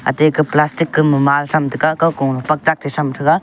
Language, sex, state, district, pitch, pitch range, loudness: Wancho, male, Arunachal Pradesh, Longding, 150 Hz, 140-155 Hz, -15 LUFS